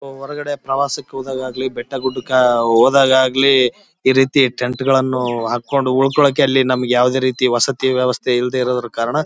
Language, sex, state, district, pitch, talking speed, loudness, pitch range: Kannada, male, Karnataka, Bellary, 130 Hz, 140 wpm, -16 LUFS, 125-135 Hz